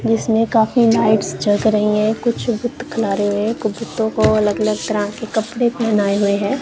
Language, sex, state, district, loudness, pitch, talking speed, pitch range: Hindi, female, Punjab, Kapurthala, -17 LUFS, 220 Hz, 170 wpm, 210-230 Hz